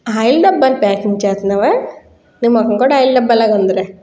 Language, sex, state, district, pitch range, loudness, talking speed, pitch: Telugu, female, Andhra Pradesh, Guntur, 200-255 Hz, -13 LUFS, 180 wpm, 220 Hz